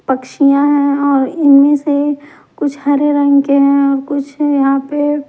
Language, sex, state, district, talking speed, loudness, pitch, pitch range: Hindi, male, Delhi, New Delhi, 170 wpm, -12 LUFS, 285 Hz, 280-290 Hz